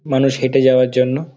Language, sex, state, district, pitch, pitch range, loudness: Bengali, male, West Bengal, Dakshin Dinajpur, 130 Hz, 130-135 Hz, -15 LUFS